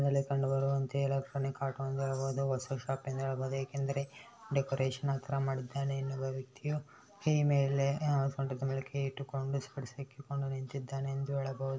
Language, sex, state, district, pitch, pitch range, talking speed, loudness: Kannada, male, Karnataka, Bellary, 135 Hz, 135-140 Hz, 135 wpm, -35 LUFS